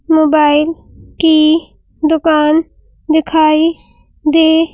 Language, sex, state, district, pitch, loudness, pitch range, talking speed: Hindi, female, Madhya Pradesh, Bhopal, 315 Hz, -12 LUFS, 310-325 Hz, 75 wpm